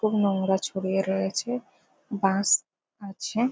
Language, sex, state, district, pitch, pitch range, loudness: Bengali, female, West Bengal, Jalpaiguri, 200 Hz, 190-240 Hz, -26 LUFS